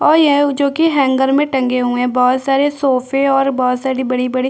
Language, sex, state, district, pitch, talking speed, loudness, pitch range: Hindi, female, Chhattisgarh, Bastar, 270 Hz, 255 wpm, -15 LUFS, 255-285 Hz